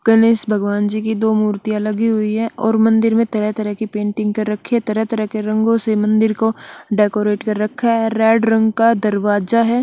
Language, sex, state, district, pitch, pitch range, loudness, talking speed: Hindi, female, Chandigarh, Chandigarh, 220 Hz, 210-225 Hz, -17 LUFS, 215 wpm